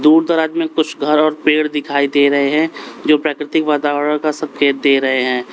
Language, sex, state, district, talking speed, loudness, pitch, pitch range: Hindi, male, Uttar Pradesh, Lalitpur, 205 wpm, -15 LUFS, 150 Hz, 140-155 Hz